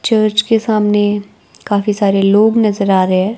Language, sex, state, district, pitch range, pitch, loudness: Hindi, female, Himachal Pradesh, Shimla, 200-215 Hz, 210 Hz, -13 LUFS